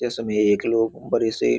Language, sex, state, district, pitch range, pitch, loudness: Hindi, male, Bihar, Muzaffarpur, 105-115 Hz, 115 Hz, -22 LUFS